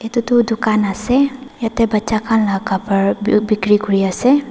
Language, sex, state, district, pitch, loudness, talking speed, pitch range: Nagamese, female, Nagaland, Dimapur, 220 Hz, -16 LUFS, 160 wpm, 205-240 Hz